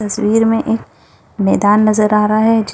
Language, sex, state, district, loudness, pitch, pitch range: Hindi, female, Bihar, Kishanganj, -13 LUFS, 215 Hz, 210-225 Hz